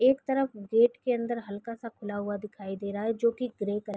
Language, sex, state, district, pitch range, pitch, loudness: Hindi, female, Chhattisgarh, Raigarh, 205-240 Hz, 225 Hz, -30 LUFS